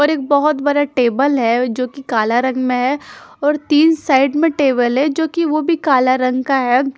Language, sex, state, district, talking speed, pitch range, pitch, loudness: Hindi, female, Punjab, Fazilka, 225 wpm, 255-300 Hz, 275 Hz, -15 LUFS